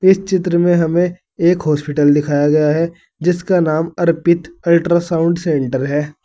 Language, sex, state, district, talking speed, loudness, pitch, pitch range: Hindi, male, Uttar Pradesh, Saharanpur, 145 wpm, -15 LUFS, 170 Hz, 150-175 Hz